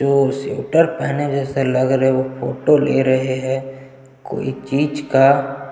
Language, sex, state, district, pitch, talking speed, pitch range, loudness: Hindi, male, Chhattisgarh, Jashpur, 135 Hz, 165 wpm, 130-140 Hz, -18 LUFS